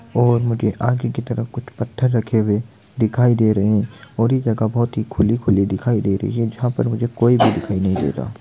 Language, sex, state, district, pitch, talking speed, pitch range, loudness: Hindi, male, Jharkhand, Sahebganj, 115 Hz, 230 wpm, 105-120 Hz, -19 LUFS